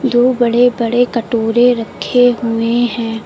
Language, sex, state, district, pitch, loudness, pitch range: Hindi, female, Uttar Pradesh, Lucknow, 240 Hz, -14 LUFS, 230-245 Hz